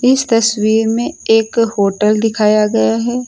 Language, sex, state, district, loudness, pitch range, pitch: Hindi, female, Uttar Pradesh, Lucknow, -13 LUFS, 210-230 Hz, 225 Hz